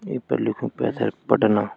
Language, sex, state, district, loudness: Garhwali, male, Uttarakhand, Tehri Garhwal, -23 LUFS